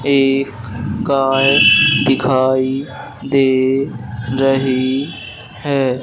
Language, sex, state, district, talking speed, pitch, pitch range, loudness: Hindi, male, Madhya Pradesh, Dhar, 60 wpm, 135 Hz, 130-135 Hz, -15 LUFS